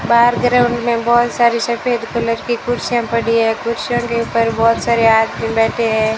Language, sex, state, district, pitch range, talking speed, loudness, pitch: Hindi, female, Rajasthan, Bikaner, 230-240 Hz, 185 wpm, -15 LUFS, 235 Hz